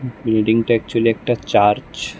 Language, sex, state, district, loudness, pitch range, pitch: Bengali, male, Tripura, West Tripura, -17 LUFS, 110-120 Hz, 115 Hz